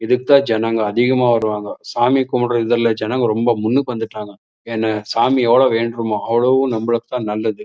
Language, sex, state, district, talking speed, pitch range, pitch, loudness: Tamil, male, Karnataka, Chamarajanagar, 150 wpm, 110-125 Hz, 115 Hz, -17 LUFS